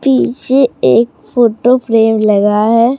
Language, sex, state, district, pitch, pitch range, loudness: Hindi, female, Bihar, Katihar, 235 Hz, 220-255 Hz, -11 LUFS